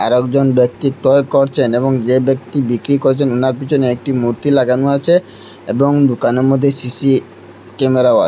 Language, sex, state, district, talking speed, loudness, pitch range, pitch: Bengali, male, Assam, Hailakandi, 150 wpm, -14 LUFS, 125-140 Hz, 130 Hz